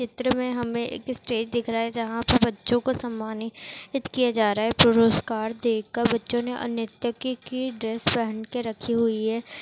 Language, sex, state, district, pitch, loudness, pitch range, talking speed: Hindi, female, Chhattisgarh, Rajnandgaon, 235 Hz, -24 LUFS, 225-245 Hz, 200 wpm